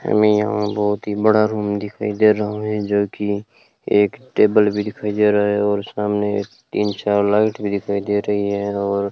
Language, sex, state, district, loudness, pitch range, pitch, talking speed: Hindi, male, Rajasthan, Bikaner, -19 LUFS, 100-105 Hz, 105 Hz, 195 wpm